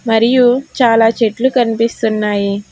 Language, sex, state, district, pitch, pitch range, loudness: Telugu, female, Telangana, Hyderabad, 225 Hz, 220-245 Hz, -13 LUFS